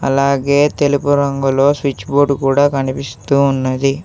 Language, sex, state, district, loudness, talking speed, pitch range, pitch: Telugu, male, Telangana, Hyderabad, -15 LUFS, 120 wpm, 135-140 Hz, 140 Hz